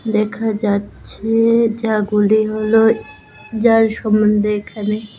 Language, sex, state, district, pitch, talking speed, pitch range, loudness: Bengali, female, Tripura, West Tripura, 215 Hz, 95 wpm, 210-225 Hz, -16 LUFS